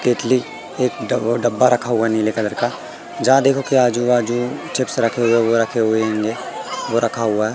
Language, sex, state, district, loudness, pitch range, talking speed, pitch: Hindi, male, Madhya Pradesh, Katni, -18 LUFS, 115-125 Hz, 180 wpm, 120 Hz